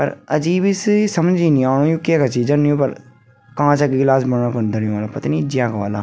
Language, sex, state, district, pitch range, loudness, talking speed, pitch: Garhwali, female, Uttarakhand, Tehri Garhwal, 120-155 Hz, -17 LUFS, 210 wpm, 135 Hz